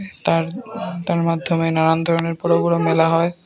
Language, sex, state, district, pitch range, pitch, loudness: Bengali, male, Tripura, Unakoti, 165-170 Hz, 165 Hz, -19 LUFS